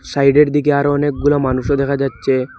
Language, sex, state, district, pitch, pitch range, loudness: Bengali, male, Assam, Hailakandi, 140 Hz, 135-145 Hz, -15 LUFS